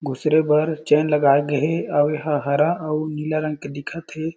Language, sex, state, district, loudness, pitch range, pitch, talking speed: Chhattisgarhi, male, Chhattisgarh, Jashpur, -20 LUFS, 145-155 Hz, 150 Hz, 205 wpm